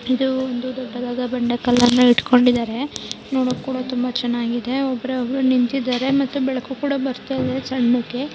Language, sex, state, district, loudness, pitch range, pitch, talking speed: Kannada, female, Karnataka, Dharwad, -20 LUFS, 245-265 Hz, 255 Hz, 95 wpm